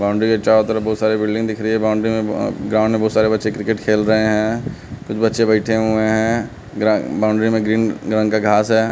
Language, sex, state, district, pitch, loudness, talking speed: Hindi, male, Bihar, West Champaran, 110 Hz, -17 LUFS, 235 wpm